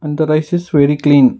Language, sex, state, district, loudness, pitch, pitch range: English, male, Karnataka, Bangalore, -13 LUFS, 150 Hz, 145-155 Hz